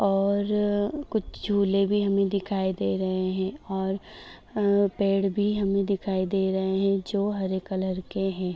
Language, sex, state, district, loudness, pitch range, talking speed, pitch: Hindi, female, Uttar Pradesh, Deoria, -26 LUFS, 190-200 Hz, 170 wpm, 195 Hz